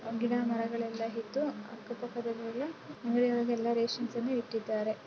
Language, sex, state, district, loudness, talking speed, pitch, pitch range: Kannada, female, Karnataka, Bellary, -34 LUFS, 120 wpm, 235 Hz, 230-240 Hz